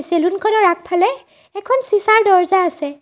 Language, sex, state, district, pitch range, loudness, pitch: Assamese, female, Assam, Sonitpur, 350-430 Hz, -15 LUFS, 380 Hz